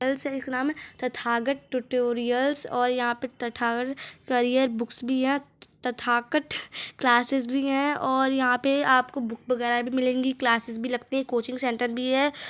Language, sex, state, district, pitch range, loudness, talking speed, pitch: Hindi, male, Chhattisgarh, Rajnandgaon, 240-270 Hz, -26 LUFS, 145 wpm, 255 Hz